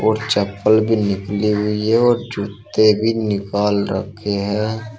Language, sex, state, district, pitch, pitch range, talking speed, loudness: Hindi, male, Uttar Pradesh, Shamli, 105 Hz, 100-110 Hz, 145 wpm, -18 LUFS